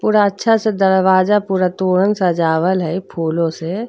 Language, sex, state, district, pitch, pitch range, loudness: Bhojpuri, female, Uttar Pradesh, Deoria, 190 Hz, 170-205 Hz, -16 LUFS